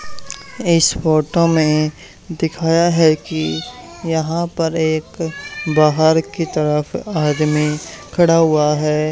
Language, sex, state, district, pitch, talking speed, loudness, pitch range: Hindi, male, Haryana, Charkhi Dadri, 160 Hz, 105 wpm, -17 LUFS, 150-165 Hz